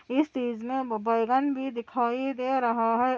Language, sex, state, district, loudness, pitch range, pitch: Hindi, female, Andhra Pradesh, Anantapur, -27 LUFS, 235-265 Hz, 250 Hz